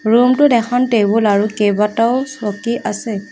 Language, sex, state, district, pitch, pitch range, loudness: Assamese, female, Assam, Kamrup Metropolitan, 225 Hz, 210-240 Hz, -15 LUFS